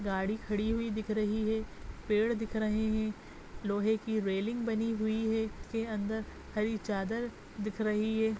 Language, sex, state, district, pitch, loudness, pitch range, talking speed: Hindi, female, Maharashtra, Nagpur, 220 Hz, -33 LUFS, 210-220 Hz, 170 wpm